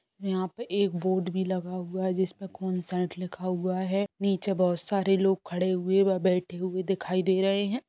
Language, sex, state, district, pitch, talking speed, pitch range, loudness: Bhojpuri, female, Bihar, Saran, 185 Hz, 190 wpm, 185-195 Hz, -28 LUFS